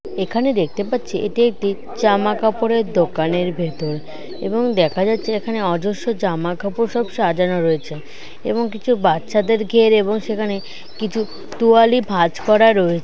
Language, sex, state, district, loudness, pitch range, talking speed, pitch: Bengali, male, West Bengal, Dakshin Dinajpur, -18 LUFS, 180-230 Hz, 140 wpm, 210 Hz